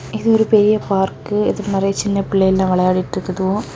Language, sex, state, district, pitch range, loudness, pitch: Tamil, female, Tamil Nadu, Kanyakumari, 190-205 Hz, -17 LUFS, 195 Hz